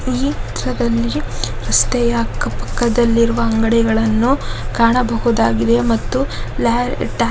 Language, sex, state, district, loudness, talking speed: Kannada, female, Karnataka, Raichur, -17 LUFS, 55 wpm